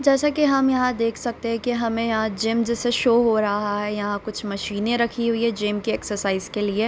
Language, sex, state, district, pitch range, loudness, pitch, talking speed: Hindi, female, Bihar, Bhagalpur, 210-235 Hz, -22 LUFS, 230 Hz, 235 wpm